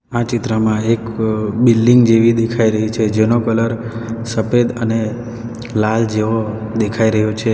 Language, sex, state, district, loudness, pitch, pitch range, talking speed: Gujarati, male, Gujarat, Valsad, -16 LUFS, 115 Hz, 110-115 Hz, 135 wpm